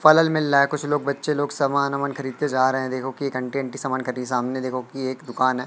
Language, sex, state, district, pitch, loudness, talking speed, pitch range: Hindi, male, Madhya Pradesh, Katni, 135 Hz, -23 LUFS, 285 wpm, 130-140 Hz